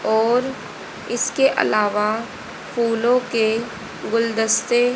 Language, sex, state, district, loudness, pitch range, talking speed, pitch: Hindi, female, Haryana, Rohtak, -20 LUFS, 220-245 Hz, 70 wpm, 230 Hz